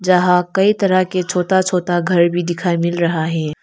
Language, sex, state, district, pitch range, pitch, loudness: Hindi, female, Arunachal Pradesh, Lower Dibang Valley, 170-185 Hz, 180 Hz, -16 LUFS